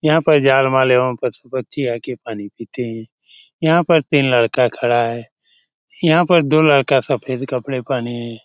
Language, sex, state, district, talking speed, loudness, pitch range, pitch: Hindi, male, Bihar, Lakhisarai, 165 wpm, -17 LUFS, 120-145 Hz, 130 Hz